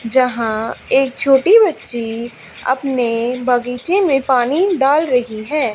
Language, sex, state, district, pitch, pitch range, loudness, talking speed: Hindi, female, Haryana, Charkhi Dadri, 255 Hz, 240-275 Hz, -16 LUFS, 115 wpm